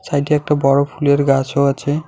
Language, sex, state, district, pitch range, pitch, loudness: Bengali, male, West Bengal, Alipurduar, 140-150 Hz, 140 Hz, -16 LUFS